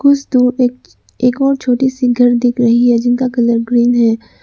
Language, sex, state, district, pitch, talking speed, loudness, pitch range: Hindi, female, Arunachal Pradesh, Lower Dibang Valley, 245 Hz, 205 wpm, -13 LUFS, 240-255 Hz